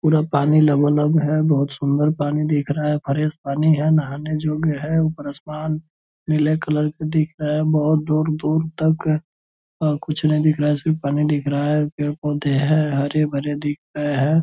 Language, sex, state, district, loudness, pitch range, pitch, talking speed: Hindi, male, Bihar, Purnia, -20 LUFS, 145-155 Hz, 150 Hz, 185 wpm